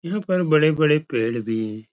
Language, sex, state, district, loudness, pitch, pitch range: Hindi, male, Uttar Pradesh, Etah, -21 LUFS, 150 Hz, 115-155 Hz